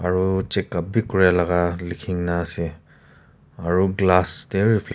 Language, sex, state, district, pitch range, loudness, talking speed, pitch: Nagamese, male, Nagaland, Kohima, 85-95 Hz, -21 LUFS, 135 wpm, 90 Hz